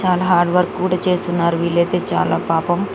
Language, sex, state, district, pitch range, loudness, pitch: Telugu, female, Telangana, Nalgonda, 170-180 Hz, -17 LUFS, 180 Hz